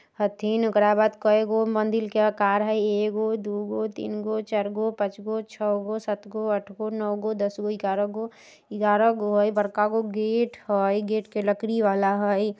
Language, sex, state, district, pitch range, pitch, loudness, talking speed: Bajjika, female, Bihar, Vaishali, 205-220 Hz, 210 Hz, -25 LUFS, 200 wpm